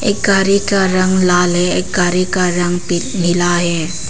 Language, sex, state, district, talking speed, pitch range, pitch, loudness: Hindi, female, Arunachal Pradesh, Papum Pare, 190 wpm, 175-190 Hz, 180 Hz, -14 LUFS